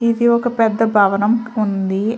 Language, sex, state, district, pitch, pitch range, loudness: Telugu, female, Andhra Pradesh, Chittoor, 225 Hz, 205-235 Hz, -16 LUFS